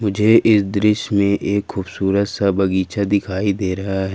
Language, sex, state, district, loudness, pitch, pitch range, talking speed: Hindi, male, Jharkhand, Ranchi, -18 LUFS, 100 Hz, 95-105 Hz, 175 wpm